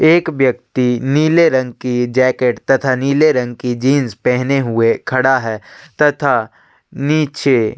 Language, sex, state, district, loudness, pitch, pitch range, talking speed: Hindi, male, Chhattisgarh, Sukma, -15 LUFS, 130 Hz, 125-140 Hz, 130 wpm